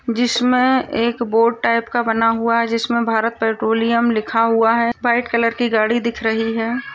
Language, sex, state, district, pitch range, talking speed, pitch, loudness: Hindi, female, Bihar, Jahanabad, 225-235 Hz, 180 wpm, 230 Hz, -17 LUFS